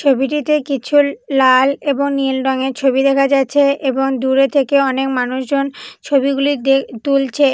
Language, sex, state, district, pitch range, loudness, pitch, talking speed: Bengali, female, West Bengal, Purulia, 265-280 Hz, -15 LUFS, 275 Hz, 135 wpm